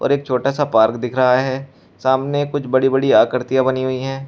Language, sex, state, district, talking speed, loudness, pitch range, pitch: Hindi, male, Uttar Pradesh, Shamli, 195 wpm, -17 LUFS, 125-135 Hz, 130 Hz